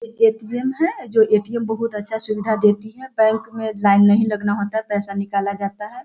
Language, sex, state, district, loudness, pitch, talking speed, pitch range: Hindi, female, Bihar, Sitamarhi, -19 LUFS, 220 Hz, 210 wpm, 205-225 Hz